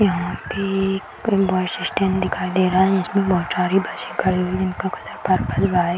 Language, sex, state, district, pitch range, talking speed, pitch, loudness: Hindi, female, Bihar, Darbhanga, 180-195 Hz, 210 wpm, 185 Hz, -21 LUFS